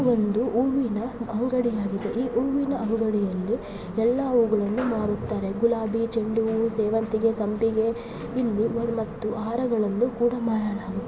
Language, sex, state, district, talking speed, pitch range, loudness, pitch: Kannada, female, Karnataka, Bellary, 105 wpm, 215-235 Hz, -25 LUFS, 225 Hz